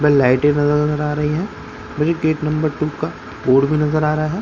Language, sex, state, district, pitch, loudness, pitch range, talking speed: Hindi, male, Bihar, Katihar, 150 Hz, -18 LUFS, 145-155 Hz, 245 wpm